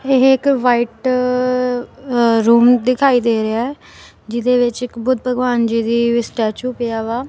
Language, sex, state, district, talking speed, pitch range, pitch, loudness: Punjabi, female, Punjab, Kapurthala, 150 wpm, 235-255 Hz, 245 Hz, -16 LUFS